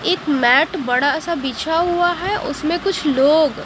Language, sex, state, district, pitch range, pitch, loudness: Hindi, female, Haryana, Jhajjar, 285-350 Hz, 315 Hz, -17 LUFS